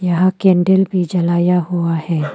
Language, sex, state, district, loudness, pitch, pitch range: Hindi, female, Arunachal Pradesh, Papum Pare, -15 LUFS, 180 Hz, 170-185 Hz